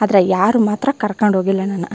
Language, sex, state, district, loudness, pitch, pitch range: Kannada, female, Karnataka, Chamarajanagar, -16 LUFS, 205 Hz, 190-215 Hz